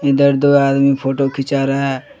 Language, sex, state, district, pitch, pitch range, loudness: Hindi, male, Jharkhand, Deoghar, 140 Hz, 135-140 Hz, -15 LUFS